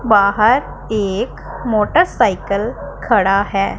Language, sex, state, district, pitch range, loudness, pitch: Hindi, female, Punjab, Pathankot, 200-220 Hz, -16 LUFS, 210 Hz